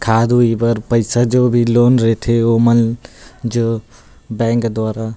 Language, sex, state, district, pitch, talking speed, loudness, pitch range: Chhattisgarhi, male, Chhattisgarh, Rajnandgaon, 115 Hz, 160 wpm, -15 LUFS, 115-120 Hz